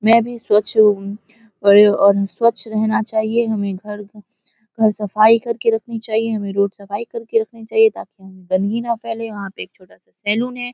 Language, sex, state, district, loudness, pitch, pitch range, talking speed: Hindi, female, Bihar, Samastipur, -17 LUFS, 215 Hz, 205-230 Hz, 185 wpm